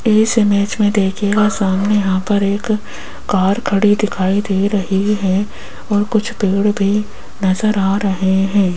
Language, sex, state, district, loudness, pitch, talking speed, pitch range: Hindi, female, Rajasthan, Jaipur, -16 LUFS, 205 Hz, 150 wpm, 195-210 Hz